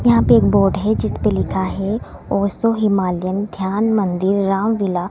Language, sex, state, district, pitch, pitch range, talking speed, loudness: Hindi, female, Himachal Pradesh, Shimla, 195 Hz, 185-210 Hz, 165 wpm, -18 LUFS